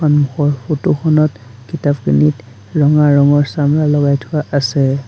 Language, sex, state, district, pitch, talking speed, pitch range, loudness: Assamese, male, Assam, Sonitpur, 145 Hz, 120 wpm, 135-150 Hz, -14 LUFS